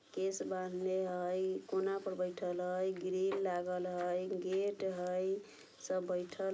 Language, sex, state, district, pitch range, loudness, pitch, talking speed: Bajjika, female, Bihar, Vaishali, 180-190 Hz, -38 LUFS, 185 Hz, 145 wpm